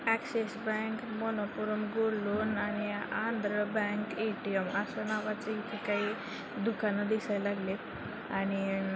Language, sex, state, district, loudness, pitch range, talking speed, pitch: Marathi, female, Maharashtra, Sindhudurg, -34 LUFS, 205-220 Hz, 125 wpm, 215 Hz